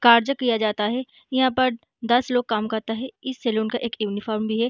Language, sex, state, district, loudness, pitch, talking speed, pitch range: Hindi, female, Bihar, Gaya, -23 LUFS, 235 Hz, 205 wpm, 220-255 Hz